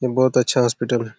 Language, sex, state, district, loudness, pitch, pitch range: Hindi, male, Jharkhand, Jamtara, -19 LUFS, 125 Hz, 120-125 Hz